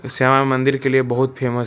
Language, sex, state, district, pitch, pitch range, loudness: Maithili, male, Bihar, Darbhanga, 130 Hz, 130-135 Hz, -17 LUFS